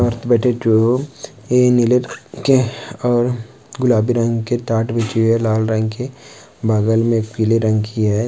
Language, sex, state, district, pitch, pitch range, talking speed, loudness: Hindi, male, Uttar Pradesh, Gorakhpur, 115 Hz, 110-125 Hz, 160 wpm, -17 LUFS